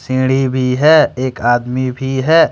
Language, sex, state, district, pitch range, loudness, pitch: Hindi, male, Jharkhand, Ranchi, 125-135 Hz, -14 LUFS, 130 Hz